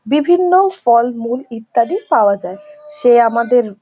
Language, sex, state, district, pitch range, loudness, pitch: Bengali, female, West Bengal, North 24 Parganas, 230-300 Hz, -14 LUFS, 245 Hz